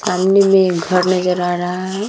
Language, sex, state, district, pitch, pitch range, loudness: Hindi, female, Bihar, Vaishali, 185 Hz, 180-190 Hz, -15 LUFS